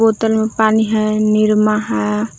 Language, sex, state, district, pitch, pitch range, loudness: Hindi, female, Jharkhand, Palamu, 215 Hz, 215-220 Hz, -15 LUFS